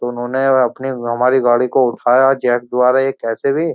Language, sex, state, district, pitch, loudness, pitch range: Hindi, male, Uttar Pradesh, Jyotiba Phule Nagar, 125 Hz, -15 LUFS, 120-135 Hz